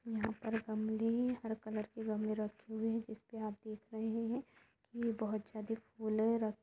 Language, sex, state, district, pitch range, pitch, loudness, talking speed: Hindi, female, Jharkhand, Jamtara, 215-225 Hz, 220 Hz, -40 LUFS, 180 wpm